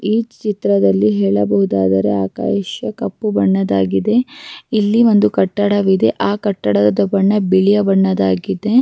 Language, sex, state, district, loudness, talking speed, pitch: Kannada, female, Karnataka, Raichur, -15 LUFS, 50 wpm, 190 Hz